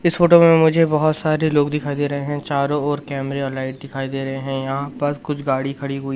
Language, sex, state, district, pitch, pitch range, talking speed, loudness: Hindi, male, Madhya Pradesh, Umaria, 145 Hz, 135-150 Hz, 255 wpm, -19 LUFS